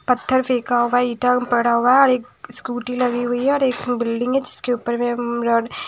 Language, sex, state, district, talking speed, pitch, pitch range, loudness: Hindi, female, Odisha, Sambalpur, 195 wpm, 245 Hz, 240-250 Hz, -19 LUFS